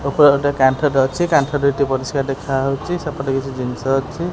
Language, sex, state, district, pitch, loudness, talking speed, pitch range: Odia, male, Odisha, Khordha, 140 Hz, -18 LUFS, 165 wpm, 135-145 Hz